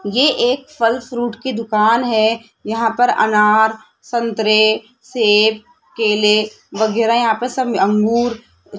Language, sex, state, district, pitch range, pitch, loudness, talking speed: Hindi, female, Rajasthan, Jaipur, 215-240 Hz, 225 Hz, -16 LUFS, 130 wpm